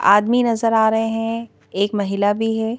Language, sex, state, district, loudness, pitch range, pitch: Hindi, female, Madhya Pradesh, Bhopal, -19 LUFS, 205-225 Hz, 225 Hz